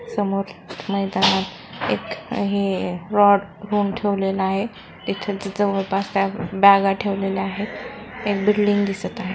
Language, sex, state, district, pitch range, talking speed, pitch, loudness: Marathi, female, Maharashtra, Solapur, 195-205 Hz, 115 wpm, 200 Hz, -21 LUFS